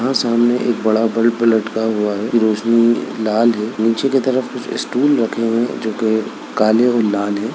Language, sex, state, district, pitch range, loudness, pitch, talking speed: Hindi, male, Bihar, Begusarai, 110-120 Hz, -16 LUFS, 115 Hz, 200 wpm